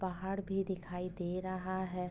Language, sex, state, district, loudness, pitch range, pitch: Hindi, female, Uttar Pradesh, Ghazipur, -38 LUFS, 180-190 Hz, 185 Hz